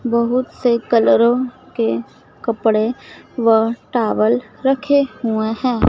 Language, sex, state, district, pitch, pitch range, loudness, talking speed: Hindi, female, Madhya Pradesh, Dhar, 235 Hz, 225-250 Hz, -17 LUFS, 100 wpm